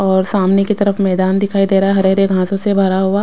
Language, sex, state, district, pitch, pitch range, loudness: Hindi, female, Bihar, West Champaran, 195 Hz, 190-200 Hz, -14 LUFS